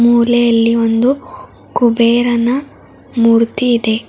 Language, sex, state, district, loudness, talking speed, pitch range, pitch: Kannada, female, Karnataka, Bidar, -13 LUFS, 75 wpm, 230-240 Hz, 235 Hz